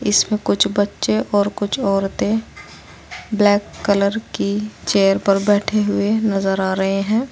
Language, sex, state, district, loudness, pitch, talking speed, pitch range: Hindi, female, Uttar Pradesh, Saharanpur, -18 LUFS, 205 Hz, 140 wpm, 195-210 Hz